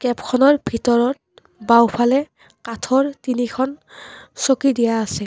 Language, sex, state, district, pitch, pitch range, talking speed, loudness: Assamese, female, Assam, Kamrup Metropolitan, 250 Hz, 235-275 Hz, 90 wpm, -18 LUFS